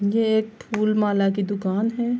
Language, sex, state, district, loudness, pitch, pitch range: Urdu, female, Andhra Pradesh, Anantapur, -22 LUFS, 215 Hz, 200-220 Hz